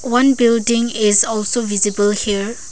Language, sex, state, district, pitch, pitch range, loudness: English, female, Arunachal Pradesh, Lower Dibang Valley, 225 Hz, 205-235 Hz, -15 LUFS